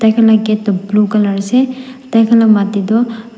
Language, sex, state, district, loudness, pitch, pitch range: Nagamese, female, Nagaland, Dimapur, -12 LUFS, 220 Hz, 210-230 Hz